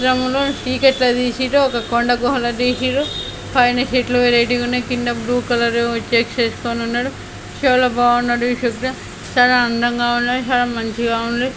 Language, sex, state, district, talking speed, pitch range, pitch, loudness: Telugu, male, Karnataka, Bellary, 115 wpm, 240-255 Hz, 245 Hz, -17 LUFS